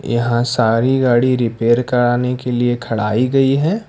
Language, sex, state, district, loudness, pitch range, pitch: Hindi, male, Karnataka, Bangalore, -16 LUFS, 120-130 Hz, 120 Hz